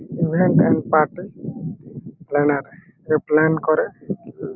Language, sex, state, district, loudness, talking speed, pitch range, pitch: Bengali, male, West Bengal, Malda, -20 LUFS, 80 wpm, 150-170 Hz, 160 Hz